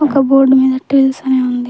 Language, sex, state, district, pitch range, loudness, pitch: Telugu, female, Telangana, Mahabubabad, 260-270 Hz, -12 LUFS, 265 Hz